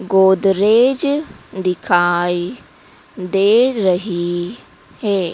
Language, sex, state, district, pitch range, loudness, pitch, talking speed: Hindi, female, Madhya Pradesh, Dhar, 175-210 Hz, -16 LUFS, 190 Hz, 65 wpm